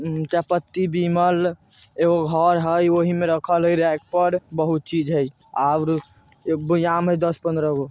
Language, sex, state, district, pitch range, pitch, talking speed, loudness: Bajjika, male, Bihar, Vaishali, 160-175 Hz, 170 Hz, 135 wpm, -21 LUFS